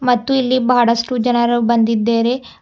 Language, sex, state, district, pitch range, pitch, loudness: Kannada, female, Karnataka, Bidar, 230-250 Hz, 240 Hz, -15 LUFS